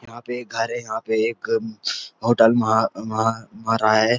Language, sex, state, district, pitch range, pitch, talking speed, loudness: Hindi, male, Uttarakhand, Uttarkashi, 110-115 Hz, 115 Hz, 145 wpm, -21 LUFS